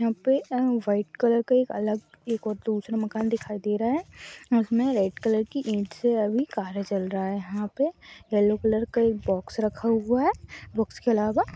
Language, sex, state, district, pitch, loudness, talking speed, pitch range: Hindi, female, Chhattisgarh, Raigarh, 220 Hz, -26 LUFS, 210 wpm, 210-235 Hz